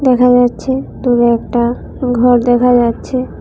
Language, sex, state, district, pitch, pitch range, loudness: Bengali, female, Tripura, West Tripura, 245 Hz, 240-250 Hz, -13 LUFS